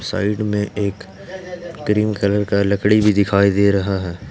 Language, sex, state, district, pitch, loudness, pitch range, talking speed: Hindi, male, Jharkhand, Ranchi, 105 Hz, -18 LUFS, 100-105 Hz, 165 wpm